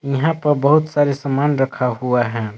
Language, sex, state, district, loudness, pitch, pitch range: Hindi, male, Jharkhand, Palamu, -18 LUFS, 140 Hz, 125-145 Hz